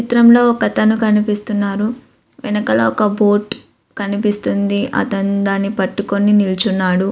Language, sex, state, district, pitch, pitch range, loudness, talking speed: Telugu, female, Andhra Pradesh, Visakhapatnam, 205 Hz, 200-215 Hz, -15 LUFS, 100 wpm